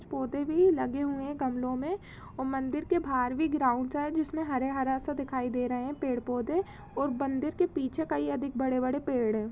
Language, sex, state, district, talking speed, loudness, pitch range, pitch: Hindi, female, Chhattisgarh, Rajnandgaon, 210 wpm, -31 LUFS, 255-300 Hz, 275 Hz